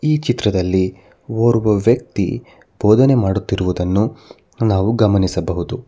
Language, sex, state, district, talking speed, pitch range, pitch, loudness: Kannada, male, Karnataka, Bangalore, 80 wpm, 95-115 Hz, 105 Hz, -17 LUFS